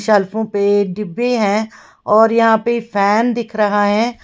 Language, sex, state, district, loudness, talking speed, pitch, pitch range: Hindi, female, Uttar Pradesh, Lalitpur, -15 LUFS, 155 wpm, 215 Hz, 205-230 Hz